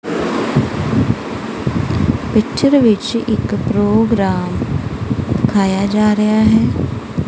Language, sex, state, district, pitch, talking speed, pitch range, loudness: Punjabi, female, Punjab, Kapurthala, 210 Hz, 65 wpm, 180-220 Hz, -16 LUFS